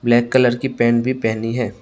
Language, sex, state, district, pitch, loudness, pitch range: Hindi, male, Tripura, West Tripura, 120 Hz, -18 LUFS, 115-125 Hz